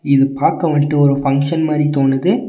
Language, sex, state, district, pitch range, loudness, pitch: Tamil, male, Tamil Nadu, Nilgiris, 140-160 Hz, -15 LUFS, 145 Hz